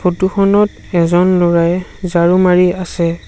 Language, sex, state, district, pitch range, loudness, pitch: Assamese, male, Assam, Sonitpur, 170-185 Hz, -13 LUFS, 180 Hz